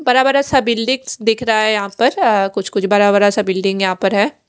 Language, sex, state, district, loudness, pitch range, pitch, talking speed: Hindi, female, Odisha, Khordha, -15 LUFS, 200-245 Hz, 210 Hz, 225 wpm